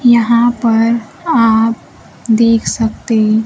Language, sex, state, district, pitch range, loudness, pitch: Hindi, female, Bihar, Kaimur, 220-235 Hz, -12 LUFS, 230 Hz